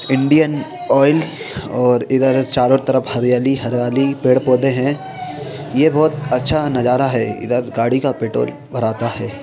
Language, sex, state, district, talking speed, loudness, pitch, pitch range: Hindi, male, Madhya Pradesh, Bhopal, 140 wpm, -16 LUFS, 130 Hz, 125-145 Hz